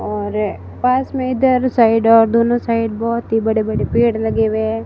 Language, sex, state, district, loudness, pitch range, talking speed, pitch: Hindi, female, Rajasthan, Barmer, -16 LUFS, 220-240 Hz, 185 wpm, 230 Hz